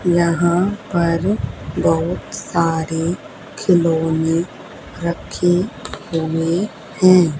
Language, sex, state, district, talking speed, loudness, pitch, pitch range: Hindi, female, Haryana, Charkhi Dadri, 65 wpm, -18 LUFS, 170 Hz, 165-180 Hz